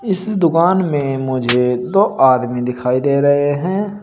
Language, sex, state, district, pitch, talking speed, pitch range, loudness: Hindi, male, Uttar Pradesh, Shamli, 145 Hz, 150 wpm, 130-185 Hz, -15 LUFS